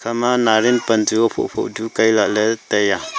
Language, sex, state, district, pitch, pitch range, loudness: Wancho, male, Arunachal Pradesh, Longding, 110 Hz, 110-115 Hz, -17 LUFS